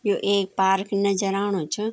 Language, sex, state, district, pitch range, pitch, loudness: Garhwali, female, Uttarakhand, Tehri Garhwal, 195-205 Hz, 200 Hz, -23 LUFS